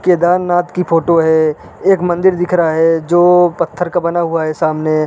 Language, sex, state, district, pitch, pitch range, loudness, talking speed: Hindi, male, Uttarakhand, Uttarkashi, 175 Hz, 160-175 Hz, -13 LUFS, 190 wpm